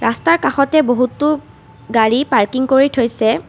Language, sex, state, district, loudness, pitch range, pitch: Assamese, female, Assam, Kamrup Metropolitan, -15 LUFS, 230-285 Hz, 255 Hz